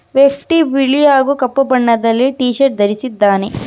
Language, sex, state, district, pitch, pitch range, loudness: Kannada, female, Karnataka, Bangalore, 265 Hz, 230-275 Hz, -13 LUFS